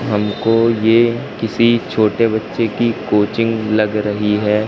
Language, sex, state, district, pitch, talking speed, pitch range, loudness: Hindi, male, Madhya Pradesh, Katni, 110 Hz, 130 wpm, 105-115 Hz, -16 LUFS